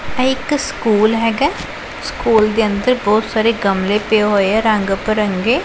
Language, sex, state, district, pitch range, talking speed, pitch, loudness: Punjabi, female, Punjab, Pathankot, 210-235 Hz, 160 wpm, 220 Hz, -15 LUFS